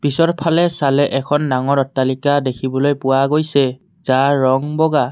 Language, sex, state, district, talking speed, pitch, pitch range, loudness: Assamese, male, Assam, Kamrup Metropolitan, 130 wpm, 140 Hz, 130-150 Hz, -16 LUFS